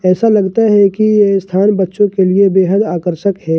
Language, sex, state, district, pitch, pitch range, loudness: Hindi, male, Jharkhand, Ranchi, 195 Hz, 185-205 Hz, -12 LUFS